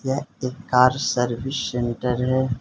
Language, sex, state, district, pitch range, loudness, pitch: Hindi, male, Arunachal Pradesh, Lower Dibang Valley, 125-130 Hz, -22 LUFS, 125 Hz